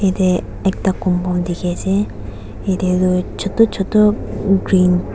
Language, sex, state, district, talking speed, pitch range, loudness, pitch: Nagamese, female, Nagaland, Dimapur, 140 wpm, 175-195 Hz, -17 LUFS, 185 Hz